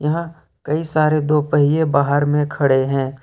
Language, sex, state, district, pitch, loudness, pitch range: Hindi, male, Jharkhand, Ranchi, 150 Hz, -18 LUFS, 140-155 Hz